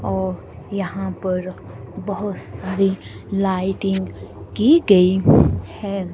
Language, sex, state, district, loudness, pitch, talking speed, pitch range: Hindi, female, Himachal Pradesh, Shimla, -19 LUFS, 190 Hz, 90 wpm, 145-195 Hz